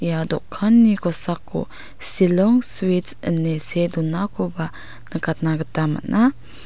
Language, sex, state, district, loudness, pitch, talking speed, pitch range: Garo, female, Meghalaya, South Garo Hills, -18 LUFS, 170 Hz, 100 wpm, 160-190 Hz